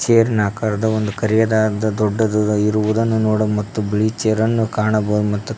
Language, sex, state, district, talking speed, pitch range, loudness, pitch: Kannada, male, Karnataka, Koppal, 140 wpm, 105-110 Hz, -18 LUFS, 110 Hz